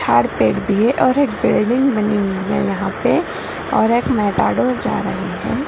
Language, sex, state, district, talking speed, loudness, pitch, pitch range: Magahi, female, Bihar, Gaya, 160 wpm, -17 LUFS, 230 Hz, 205-255 Hz